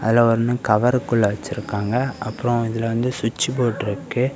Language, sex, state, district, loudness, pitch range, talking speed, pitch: Tamil, male, Tamil Nadu, Kanyakumari, -21 LUFS, 110-125 Hz, 135 wpm, 115 Hz